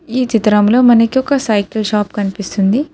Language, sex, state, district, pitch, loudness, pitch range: Telugu, female, Telangana, Hyderabad, 220 Hz, -13 LUFS, 210-250 Hz